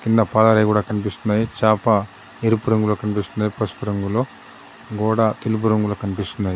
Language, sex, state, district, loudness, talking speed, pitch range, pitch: Telugu, male, Telangana, Adilabad, -20 LUFS, 130 wpm, 105-110 Hz, 110 Hz